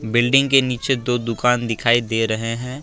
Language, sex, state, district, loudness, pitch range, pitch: Hindi, male, Assam, Kamrup Metropolitan, -18 LUFS, 115-125 Hz, 120 Hz